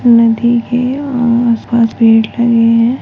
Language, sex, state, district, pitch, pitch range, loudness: Hindi, female, Uttar Pradesh, Hamirpur, 235 Hz, 230-245 Hz, -11 LUFS